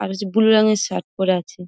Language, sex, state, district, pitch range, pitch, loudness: Bengali, female, West Bengal, Dakshin Dinajpur, 185-215 Hz, 195 Hz, -18 LUFS